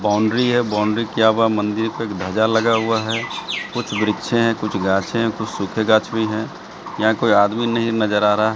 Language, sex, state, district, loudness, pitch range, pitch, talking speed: Hindi, male, Bihar, Katihar, -19 LUFS, 105-115 Hz, 110 Hz, 205 wpm